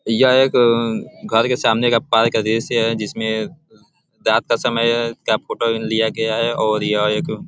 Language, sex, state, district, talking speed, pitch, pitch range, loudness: Hindi, male, Uttar Pradesh, Ghazipur, 190 wpm, 115 Hz, 110-115 Hz, -18 LUFS